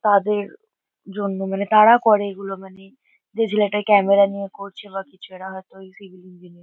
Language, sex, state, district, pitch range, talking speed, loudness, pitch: Bengali, female, West Bengal, Kolkata, 190-210 Hz, 170 wpm, -18 LUFS, 200 Hz